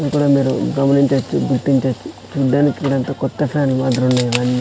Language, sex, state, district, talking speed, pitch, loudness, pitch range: Telugu, male, Andhra Pradesh, Sri Satya Sai, 90 wpm, 135 Hz, -17 LUFS, 130-140 Hz